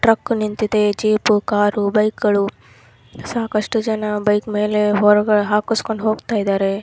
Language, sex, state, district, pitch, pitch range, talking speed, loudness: Kannada, female, Karnataka, Raichur, 210 Hz, 210-215 Hz, 125 wpm, -18 LUFS